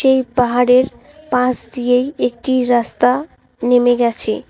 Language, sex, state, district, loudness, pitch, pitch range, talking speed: Bengali, female, West Bengal, Cooch Behar, -16 LUFS, 245 Hz, 245-255 Hz, 105 wpm